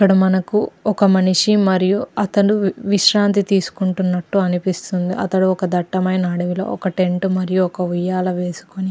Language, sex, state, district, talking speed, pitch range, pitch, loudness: Telugu, female, Andhra Pradesh, Krishna, 135 wpm, 185-195 Hz, 185 Hz, -18 LUFS